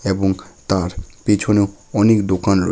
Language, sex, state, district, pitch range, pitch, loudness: Bengali, male, West Bengal, Malda, 95-105 Hz, 95 Hz, -18 LUFS